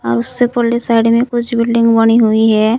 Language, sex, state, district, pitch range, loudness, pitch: Hindi, female, Uttar Pradesh, Saharanpur, 225-235 Hz, -12 LUFS, 230 Hz